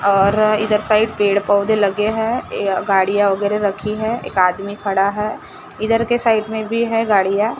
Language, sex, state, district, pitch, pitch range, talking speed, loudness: Hindi, female, Maharashtra, Gondia, 210 Hz, 200-220 Hz, 180 wpm, -17 LUFS